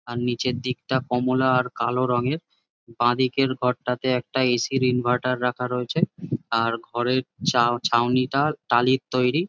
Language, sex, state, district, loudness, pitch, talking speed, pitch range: Bengali, male, West Bengal, Jhargram, -23 LUFS, 125 Hz, 135 wpm, 120-130 Hz